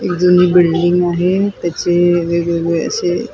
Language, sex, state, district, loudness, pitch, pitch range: Marathi, female, Maharashtra, Mumbai Suburban, -14 LUFS, 175 Hz, 170-180 Hz